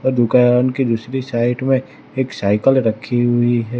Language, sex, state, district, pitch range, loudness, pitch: Hindi, male, Gujarat, Valsad, 120-130 Hz, -17 LUFS, 125 Hz